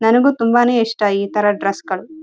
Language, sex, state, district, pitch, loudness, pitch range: Kannada, female, Karnataka, Raichur, 220 Hz, -16 LUFS, 200-240 Hz